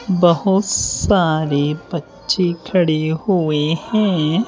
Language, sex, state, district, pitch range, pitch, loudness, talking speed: Hindi, female, Madhya Pradesh, Bhopal, 155-195 Hz, 175 Hz, -17 LUFS, 80 wpm